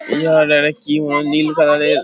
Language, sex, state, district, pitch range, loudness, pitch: Bengali, male, West Bengal, Paschim Medinipur, 150-155 Hz, -15 LUFS, 150 Hz